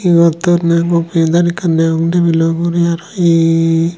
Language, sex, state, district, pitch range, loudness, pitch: Chakma, male, Tripura, Unakoti, 165-170 Hz, -13 LUFS, 170 Hz